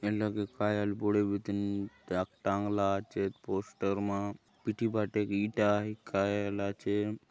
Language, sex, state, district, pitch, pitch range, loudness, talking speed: Halbi, male, Chhattisgarh, Bastar, 100 Hz, 100-105 Hz, -33 LUFS, 155 wpm